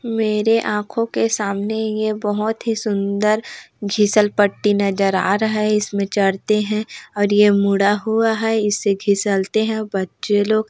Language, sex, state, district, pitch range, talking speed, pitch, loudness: Hindi, female, Chhattisgarh, Korba, 200-220 Hz, 145 wpm, 210 Hz, -18 LUFS